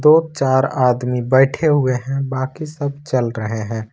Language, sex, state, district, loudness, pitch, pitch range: Hindi, male, Jharkhand, Ranchi, -18 LUFS, 130 Hz, 125-145 Hz